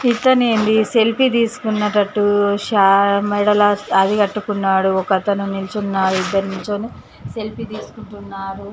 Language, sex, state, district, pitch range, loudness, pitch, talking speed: Telugu, female, Telangana, Karimnagar, 195-215 Hz, -17 LUFS, 205 Hz, 90 wpm